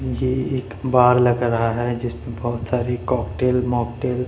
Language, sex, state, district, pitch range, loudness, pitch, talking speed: Hindi, male, Punjab, Pathankot, 120-125 Hz, -21 LUFS, 125 Hz, 170 wpm